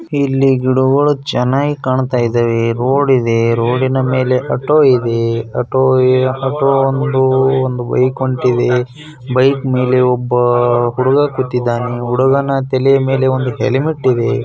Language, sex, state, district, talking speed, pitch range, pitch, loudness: Kannada, male, Karnataka, Bijapur, 110 wpm, 125-135 Hz, 130 Hz, -14 LUFS